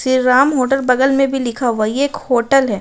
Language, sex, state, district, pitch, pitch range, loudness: Hindi, female, Bihar, Gaya, 260 Hz, 250-275 Hz, -15 LUFS